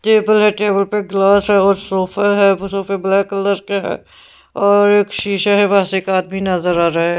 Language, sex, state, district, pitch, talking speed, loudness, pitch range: Hindi, female, Punjab, Pathankot, 200 Hz, 215 wpm, -15 LUFS, 195-205 Hz